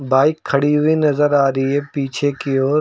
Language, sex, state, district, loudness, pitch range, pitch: Hindi, male, Uttar Pradesh, Lucknow, -17 LUFS, 135-150 Hz, 140 Hz